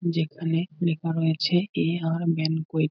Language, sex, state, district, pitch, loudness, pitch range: Bengali, male, West Bengal, North 24 Parganas, 165 Hz, -26 LUFS, 160-170 Hz